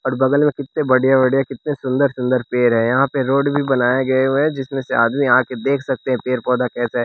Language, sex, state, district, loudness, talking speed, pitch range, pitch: Hindi, male, Bihar, West Champaran, -17 LUFS, 265 wpm, 125-140 Hz, 130 Hz